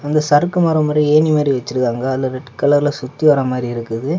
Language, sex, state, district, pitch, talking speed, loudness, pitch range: Tamil, male, Tamil Nadu, Kanyakumari, 145 Hz, 200 wpm, -16 LUFS, 130-150 Hz